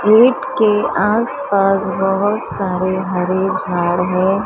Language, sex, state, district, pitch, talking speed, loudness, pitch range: Hindi, female, Maharashtra, Mumbai Suburban, 195 Hz, 120 wpm, -16 LUFS, 185-210 Hz